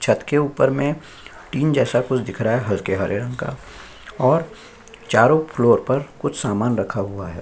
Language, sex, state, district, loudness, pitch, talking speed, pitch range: Hindi, male, Chhattisgarh, Sukma, -20 LUFS, 130 Hz, 185 wpm, 110-145 Hz